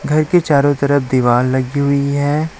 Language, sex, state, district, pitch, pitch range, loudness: Hindi, male, Chhattisgarh, Raipur, 140 Hz, 130-150 Hz, -15 LUFS